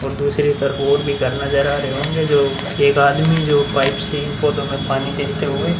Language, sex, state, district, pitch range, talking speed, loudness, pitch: Hindi, male, Bihar, Vaishali, 140-145 Hz, 225 wpm, -18 LUFS, 140 Hz